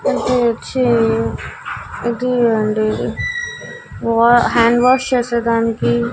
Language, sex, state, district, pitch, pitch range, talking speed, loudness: Telugu, female, Andhra Pradesh, Annamaya, 235 Hz, 230-250 Hz, 100 wpm, -16 LUFS